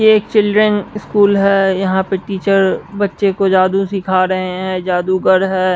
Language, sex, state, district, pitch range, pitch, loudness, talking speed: Hindi, male, Bihar, West Champaran, 185-200 Hz, 195 Hz, -14 LUFS, 165 wpm